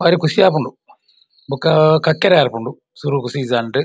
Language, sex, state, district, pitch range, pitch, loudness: Tulu, male, Karnataka, Dakshina Kannada, 130-160 Hz, 150 Hz, -15 LUFS